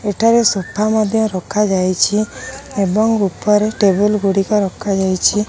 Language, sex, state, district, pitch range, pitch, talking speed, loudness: Odia, female, Odisha, Khordha, 195-215 Hz, 210 Hz, 100 wpm, -15 LUFS